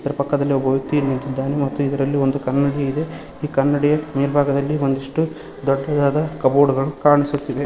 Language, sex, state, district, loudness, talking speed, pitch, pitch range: Kannada, male, Karnataka, Koppal, -19 LUFS, 135 wpm, 140 Hz, 135-145 Hz